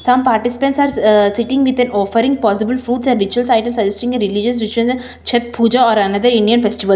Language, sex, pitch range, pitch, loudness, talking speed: English, female, 215-250 Hz, 235 Hz, -14 LUFS, 190 wpm